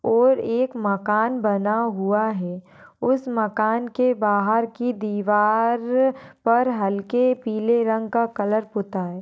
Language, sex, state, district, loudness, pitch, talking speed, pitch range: Kumaoni, female, Uttarakhand, Tehri Garhwal, -22 LUFS, 220 Hz, 130 wpm, 205-240 Hz